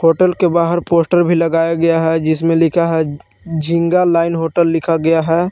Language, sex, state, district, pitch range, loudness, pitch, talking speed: Hindi, male, Jharkhand, Palamu, 165-170 Hz, -14 LUFS, 165 Hz, 175 wpm